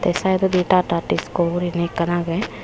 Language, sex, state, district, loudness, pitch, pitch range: Chakma, female, Tripura, Unakoti, -20 LUFS, 175 Hz, 170-185 Hz